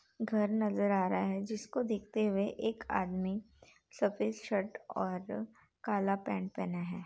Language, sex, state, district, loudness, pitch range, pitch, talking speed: Hindi, female, Bihar, Darbhanga, -35 LUFS, 195-220 Hz, 205 Hz, 145 wpm